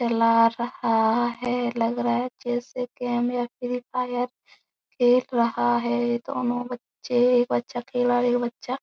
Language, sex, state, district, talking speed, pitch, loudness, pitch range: Hindi, female, Uttar Pradesh, Etah, 155 wpm, 245 Hz, -24 LUFS, 240-245 Hz